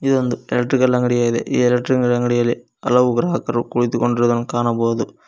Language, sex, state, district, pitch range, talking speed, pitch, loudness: Kannada, male, Karnataka, Koppal, 120-125 Hz, 135 wpm, 120 Hz, -18 LUFS